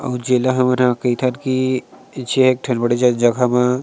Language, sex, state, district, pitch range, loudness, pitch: Chhattisgarhi, male, Chhattisgarh, Sarguja, 125-130 Hz, -17 LUFS, 125 Hz